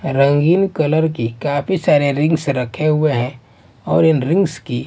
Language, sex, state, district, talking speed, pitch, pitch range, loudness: Hindi, male, Maharashtra, Washim, 160 wpm, 145 Hz, 130-160 Hz, -16 LUFS